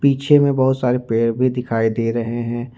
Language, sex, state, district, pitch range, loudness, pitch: Hindi, male, Jharkhand, Ranchi, 115-130 Hz, -18 LUFS, 125 Hz